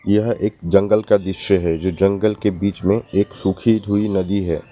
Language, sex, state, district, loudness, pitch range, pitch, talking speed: Hindi, male, West Bengal, Alipurduar, -18 LUFS, 95-105 Hz, 100 Hz, 205 wpm